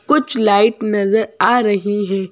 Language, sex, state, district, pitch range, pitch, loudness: Hindi, female, Madhya Pradesh, Bhopal, 200-230 Hz, 210 Hz, -15 LUFS